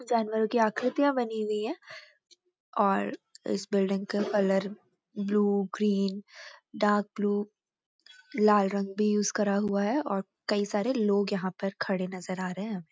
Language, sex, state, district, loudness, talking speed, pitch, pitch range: Hindi, female, Uttarakhand, Uttarkashi, -29 LUFS, 160 wpm, 205 Hz, 200-215 Hz